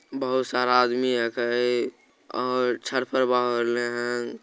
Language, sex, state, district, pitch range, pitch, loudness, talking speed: Magahi, male, Bihar, Jamui, 120-125 Hz, 125 Hz, -25 LUFS, 135 wpm